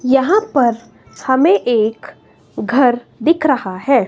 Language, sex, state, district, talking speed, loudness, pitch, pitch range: Hindi, female, Himachal Pradesh, Shimla, 120 wpm, -15 LUFS, 260 Hz, 235-295 Hz